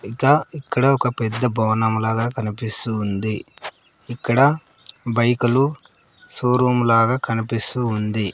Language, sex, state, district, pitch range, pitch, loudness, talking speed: Telugu, male, Andhra Pradesh, Sri Satya Sai, 110-125 Hz, 120 Hz, -19 LUFS, 100 wpm